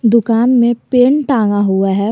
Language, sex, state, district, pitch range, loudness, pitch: Hindi, male, Jharkhand, Garhwa, 205-250 Hz, -12 LUFS, 230 Hz